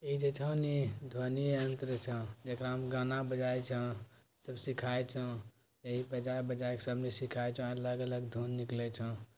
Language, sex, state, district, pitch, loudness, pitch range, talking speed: Maithili, male, Bihar, Bhagalpur, 125 Hz, -38 LUFS, 120-130 Hz, 175 wpm